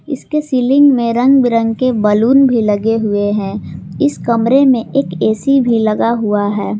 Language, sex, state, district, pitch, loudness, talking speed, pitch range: Hindi, female, Jharkhand, Palamu, 235 Hz, -13 LUFS, 175 wpm, 215-270 Hz